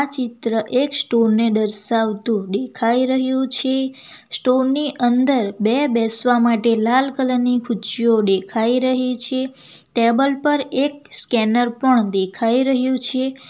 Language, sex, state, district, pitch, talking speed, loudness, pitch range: Gujarati, female, Gujarat, Valsad, 245 Hz, 130 wpm, -18 LUFS, 230-260 Hz